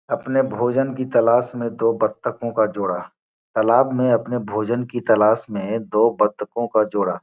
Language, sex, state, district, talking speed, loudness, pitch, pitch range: Hindi, male, Bihar, Gopalganj, 165 wpm, -20 LUFS, 115 Hz, 110-125 Hz